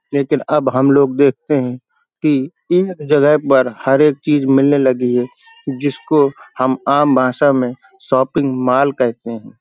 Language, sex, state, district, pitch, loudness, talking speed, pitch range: Hindi, male, Uttar Pradesh, Hamirpur, 140 Hz, -15 LUFS, 155 wpm, 130-150 Hz